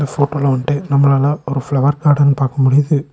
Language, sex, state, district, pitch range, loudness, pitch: Tamil, male, Tamil Nadu, Nilgiris, 135-145 Hz, -14 LUFS, 140 Hz